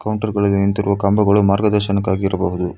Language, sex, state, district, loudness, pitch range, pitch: Kannada, male, Karnataka, Bangalore, -17 LUFS, 100-105 Hz, 100 Hz